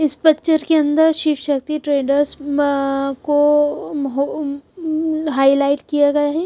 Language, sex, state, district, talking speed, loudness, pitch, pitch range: Hindi, female, Punjab, Pathankot, 110 wpm, -17 LUFS, 290 Hz, 280-310 Hz